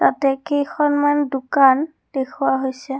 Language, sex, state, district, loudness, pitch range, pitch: Assamese, female, Assam, Kamrup Metropolitan, -19 LUFS, 265-290 Hz, 275 Hz